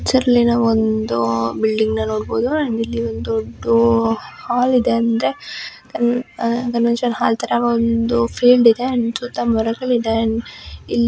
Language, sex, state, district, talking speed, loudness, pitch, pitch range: Kannada, male, Karnataka, Chamarajanagar, 140 wpm, -18 LUFS, 230 Hz, 220-240 Hz